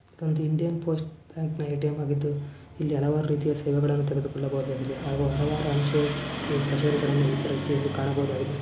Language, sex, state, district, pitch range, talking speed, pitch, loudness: Kannada, female, Karnataka, Shimoga, 140-150 Hz, 110 wpm, 145 Hz, -27 LUFS